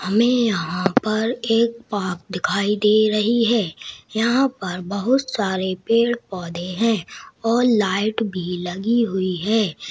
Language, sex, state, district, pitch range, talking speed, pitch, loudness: Hindi, male, Uttarakhand, Tehri Garhwal, 185-230 Hz, 125 wpm, 215 Hz, -20 LUFS